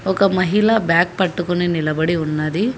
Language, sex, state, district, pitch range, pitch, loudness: Telugu, female, Telangana, Hyderabad, 165-195 Hz, 175 Hz, -18 LUFS